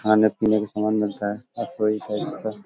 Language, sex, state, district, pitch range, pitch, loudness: Hindi, male, Uttar Pradesh, Hamirpur, 105-110 Hz, 105 Hz, -24 LUFS